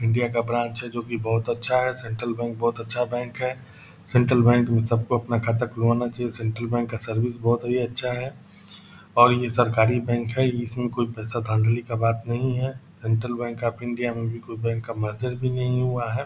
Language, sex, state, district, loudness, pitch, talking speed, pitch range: Hindi, male, Bihar, Purnia, -24 LUFS, 120 Hz, 220 wpm, 115-125 Hz